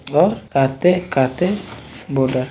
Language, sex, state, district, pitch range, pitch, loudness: Maithili, male, Bihar, Samastipur, 130-180 Hz, 135 Hz, -18 LUFS